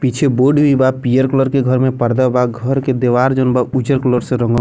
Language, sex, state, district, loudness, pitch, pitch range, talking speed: Bhojpuri, male, Bihar, Muzaffarpur, -14 LUFS, 130 Hz, 125-135 Hz, 285 wpm